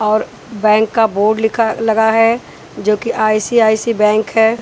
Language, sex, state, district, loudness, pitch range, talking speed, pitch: Hindi, female, Punjab, Pathankot, -14 LUFS, 215-225 Hz, 145 wpm, 220 Hz